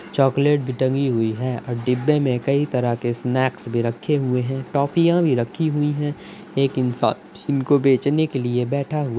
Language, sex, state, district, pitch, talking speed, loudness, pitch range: Hindi, male, Uttar Pradesh, Budaun, 135 Hz, 185 wpm, -21 LUFS, 125-145 Hz